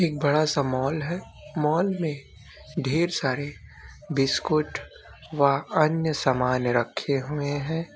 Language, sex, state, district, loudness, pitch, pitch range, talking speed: Hindi, male, Bihar, Bhagalpur, -25 LUFS, 145 Hz, 135-155 Hz, 120 wpm